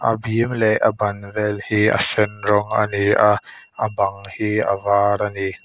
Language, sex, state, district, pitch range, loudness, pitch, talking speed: Mizo, male, Mizoram, Aizawl, 100-110 Hz, -19 LUFS, 105 Hz, 190 wpm